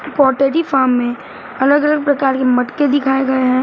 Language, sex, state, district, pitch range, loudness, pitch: Hindi, male, Maharashtra, Mumbai Suburban, 255-285 Hz, -15 LUFS, 270 Hz